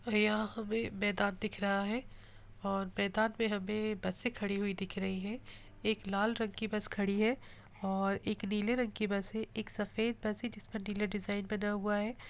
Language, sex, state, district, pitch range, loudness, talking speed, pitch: Hindi, female, Bihar, Gopalganj, 200-220 Hz, -36 LUFS, 205 wpm, 210 Hz